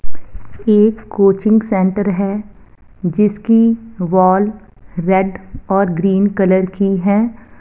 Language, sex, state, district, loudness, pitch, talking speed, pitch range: Hindi, female, Punjab, Fazilka, -15 LUFS, 195 Hz, 95 wpm, 185-210 Hz